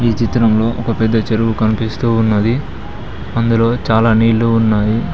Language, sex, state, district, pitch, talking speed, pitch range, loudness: Telugu, male, Telangana, Mahabubabad, 115 Hz, 130 wpm, 110-115 Hz, -14 LUFS